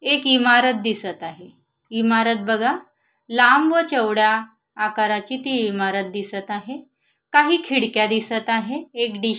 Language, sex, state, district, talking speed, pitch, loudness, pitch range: Marathi, female, Maharashtra, Solapur, 130 wpm, 225 Hz, -20 LUFS, 215-260 Hz